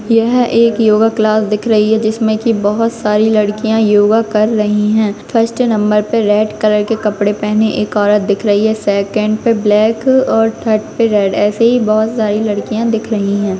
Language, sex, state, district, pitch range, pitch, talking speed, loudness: Hindi, female, Rajasthan, Churu, 210-225 Hz, 215 Hz, 195 wpm, -13 LUFS